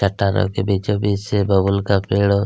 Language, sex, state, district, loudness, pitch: Hindi, male, Chhattisgarh, Kabirdham, -18 LUFS, 100 Hz